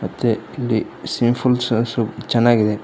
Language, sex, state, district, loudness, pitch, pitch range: Kannada, male, Karnataka, Koppal, -19 LUFS, 120 Hz, 115-120 Hz